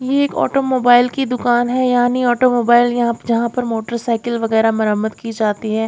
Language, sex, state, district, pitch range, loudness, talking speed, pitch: Hindi, female, Haryana, Jhajjar, 225-250 Hz, -16 LUFS, 175 wpm, 240 Hz